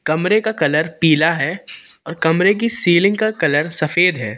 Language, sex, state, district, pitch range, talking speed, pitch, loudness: Hindi, male, Madhya Pradesh, Katni, 155-195 Hz, 180 wpm, 165 Hz, -16 LUFS